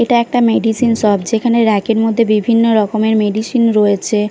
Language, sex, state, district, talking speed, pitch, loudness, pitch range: Bengali, female, Bihar, Katihar, 165 wpm, 225 Hz, -13 LUFS, 215-230 Hz